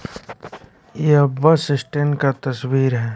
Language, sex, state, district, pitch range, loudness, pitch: Hindi, male, Bihar, West Champaran, 130-145 Hz, -18 LUFS, 140 Hz